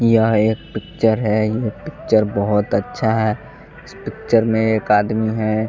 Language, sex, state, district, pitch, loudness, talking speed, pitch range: Hindi, male, Bihar, West Champaran, 110 Hz, -18 LUFS, 160 wpm, 105-110 Hz